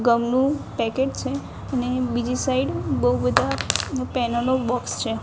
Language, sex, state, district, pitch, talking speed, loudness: Gujarati, female, Gujarat, Gandhinagar, 245 Hz, 140 wpm, -23 LUFS